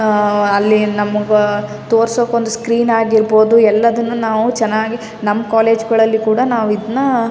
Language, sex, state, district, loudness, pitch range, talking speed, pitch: Kannada, female, Karnataka, Raichur, -14 LUFS, 215-230 Hz, 140 wpm, 225 Hz